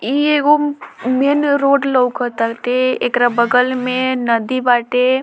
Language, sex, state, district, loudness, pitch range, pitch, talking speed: Bhojpuri, female, Bihar, Muzaffarpur, -15 LUFS, 245-275 Hz, 255 Hz, 115 wpm